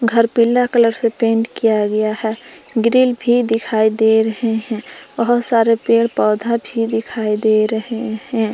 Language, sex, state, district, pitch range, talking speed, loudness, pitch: Hindi, female, Jharkhand, Palamu, 220-235 Hz, 160 wpm, -16 LUFS, 230 Hz